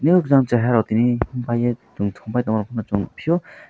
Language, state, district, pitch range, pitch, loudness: Kokborok, Tripura, West Tripura, 110-130 Hz, 120 Hz, -21 LUFS